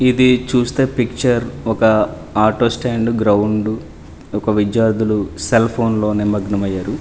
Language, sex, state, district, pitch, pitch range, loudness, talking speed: Telugu, male, Andhra Pradesh, Manyam, 110 Hz, 105-120 Hz, -16 LUFS, 110 wpm